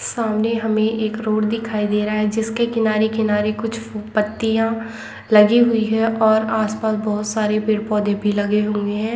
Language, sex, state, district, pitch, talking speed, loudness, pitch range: Hindi, female, Bihar, Saran, 215 Hz, 190 wpm, -19 LUFS, 210-225 Hz